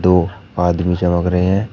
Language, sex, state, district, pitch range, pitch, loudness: Hindi, male, Uttar Pradesh, Shamli, 90-95 Hz, 90 Hz, -17 LUFS